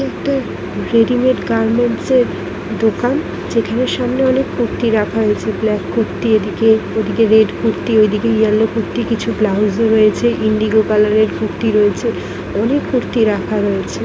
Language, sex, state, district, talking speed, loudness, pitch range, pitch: Bengali, female, West Bengal, Dakshin Dinajpur, 150 wpm, -15 LUFS, 210-230 Hz, 220 Hz